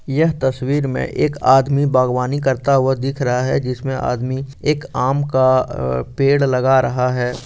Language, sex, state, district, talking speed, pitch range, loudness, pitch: Hindi, male, Jharkhand, Sahebganj, 175 wpm, 125-140 Hz, -17 LUFS, 130 Hz